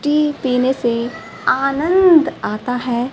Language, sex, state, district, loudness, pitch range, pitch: Hindi, female, Haryana, Rohtak, -16 LUFS, 240-295 Hz, 255 Hz